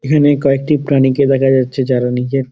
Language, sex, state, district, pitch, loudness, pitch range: Bengali, male, West Bengal, Dakshin Dinajpur, 135 Hz, -13 LUFS, 130-140 Hz